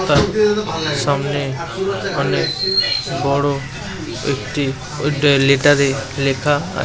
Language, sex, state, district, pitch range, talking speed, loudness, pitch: Bengali, male, West Bengal, Malda, 135-150 Hz, 80 wpm, -18 LUFS, 140 Hz